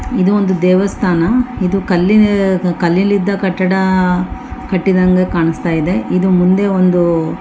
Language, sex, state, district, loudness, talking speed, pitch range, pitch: Kannada, female, Karnataka, Bellary, -13 LUFS, 120 wpm, 180-195 Hz, 185 Hz